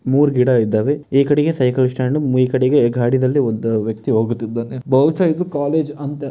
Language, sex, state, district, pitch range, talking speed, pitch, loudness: Kannada, male, Karnataka, Bellary, 120-145 Hz, 170 wpm, 130 Hz, -17 LUFS